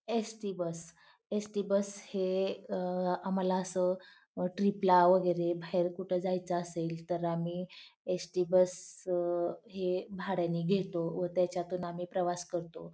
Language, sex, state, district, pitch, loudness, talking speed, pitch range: Marathi, female, Maharashtra, Pune, 180 Hz, -33 LUFS, 125 wpm, 175-190 Hz